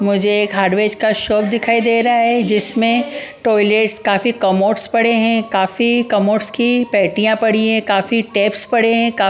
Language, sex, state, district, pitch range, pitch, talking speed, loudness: Hindi, female, Punjab, Pathankot, 205-230 Hz, 220 Hz, 170 wpm, -14 LUFS